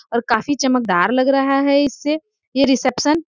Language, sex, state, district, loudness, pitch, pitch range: Hindi, female, Jharkhand, Sahebganj, -17 LUFS, 275 Hz, 255-290 Hz